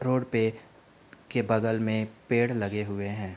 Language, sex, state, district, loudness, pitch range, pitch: Hindi, male, Uttar Pradesh, Budaun, -28 LUFS, 105-120 Hz, 110 Hz